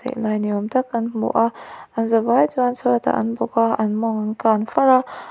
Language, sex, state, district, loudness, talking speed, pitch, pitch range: Mizo, female, Mizoram, Aizawl, -20 LUFS, 225 wpm, 230 Hz, 220-245 Hz